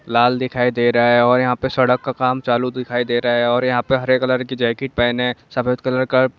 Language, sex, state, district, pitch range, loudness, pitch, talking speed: Hindi, male, Jharkhand, Jamtara, 120-130 Hz, -18 LUFS, 125 Hz, 265 wpm